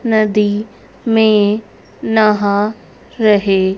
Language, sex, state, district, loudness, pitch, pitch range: Hindi, female, Haryana, Rohtak, -14 LUFS, 210 Hz, 205-220 Hz